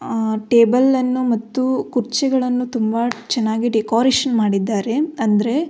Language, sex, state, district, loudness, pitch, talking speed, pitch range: Kannada, female, Karnataka, Belgaum, -18 LUFS, 240 Hz, 95 wpm, 220-255 Hz